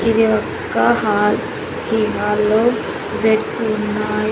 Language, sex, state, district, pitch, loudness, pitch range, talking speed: Telugu, female, Andhra Pradesh, Sri Satya Sai, 215 Hz, -18 LUFS, 210-225 Hz, 95 wpm